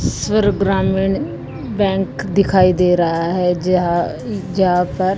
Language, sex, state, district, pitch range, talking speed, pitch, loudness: Hindi, female, Haryana, Jhajjar, 180-195 Hz, 105 wpm, 185 Hz, -17 LUFS